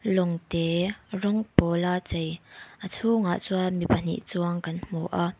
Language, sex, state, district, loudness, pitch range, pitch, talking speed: Mizo, female, Mizoram, Aizawl, -27 LUFS, 170-190 Hz, 175 Hz, 155 wpm